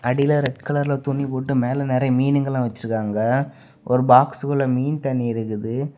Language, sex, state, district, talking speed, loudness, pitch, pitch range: Tamil, male, Tamil Nadu, Kanyakumari, 140 wpm, -21 LUFS, 130 Hz, 125-140 Hz